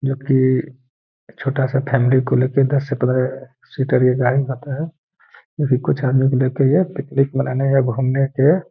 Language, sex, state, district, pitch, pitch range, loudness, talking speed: Hindi, male, Bihar, Gaya, 135 Hz, 130-140 Hz, -18 LUFS, 185 wpm